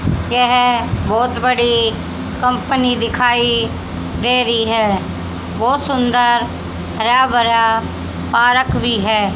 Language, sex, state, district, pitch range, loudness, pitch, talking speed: Hindi, female, Haryana, Jhajjar, 230-245 Hz, -15 LUFS, 240 Hz, 95 wpm